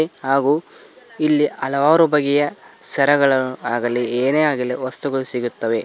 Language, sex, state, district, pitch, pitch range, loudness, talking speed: Kannada, male, Karnataka, Koppal, 135 Hz, 125-150 Hz, -18 LUFS, 100 wpm